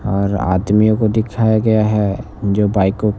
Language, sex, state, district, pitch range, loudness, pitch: Hindi, male, Himachal Pradesh, Shimla, 100-110 Hz, -16 LUFS, 105 Hz